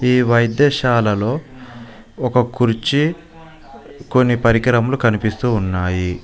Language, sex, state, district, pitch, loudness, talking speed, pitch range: Telugu, male, Telangana, Mahabubabad, 120 Hz, -17 LUFS, 75 wpm, 115-130 Hz